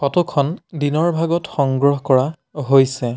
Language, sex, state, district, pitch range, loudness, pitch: Assamese, male, Assam, Sonitpur, 135-165 Hz, -18 LUFS, 145 Hz